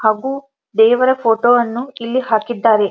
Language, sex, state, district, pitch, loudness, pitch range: Kannada, female, Karnataka, Dharwad, 240 Hz, -15 LUFS, 225-260 Hz